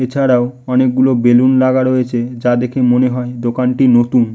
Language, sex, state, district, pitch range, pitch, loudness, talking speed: Bengali, male, West Bengal, Malda, 120-130 Hz, 125 Hz, -13 LUFS, 180 wpm